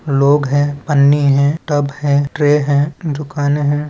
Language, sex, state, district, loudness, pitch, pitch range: Hindi, male, Chhattisgarh, Raigarh, -15 LUFS, 145 Hz, 140-145 Hz